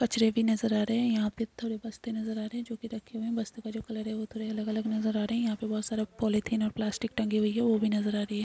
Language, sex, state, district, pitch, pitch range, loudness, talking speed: Hindi, female, Chhattisgarh, Jashpur, 220 Hz, 215-225 Hz, -31 LUFS, 335 wpm